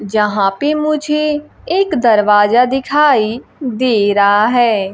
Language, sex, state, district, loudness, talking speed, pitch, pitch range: Hindi, female, Bihar, Kaimur, -13 LUFS, 110 wpm, 240 Hz, 210-295 Hz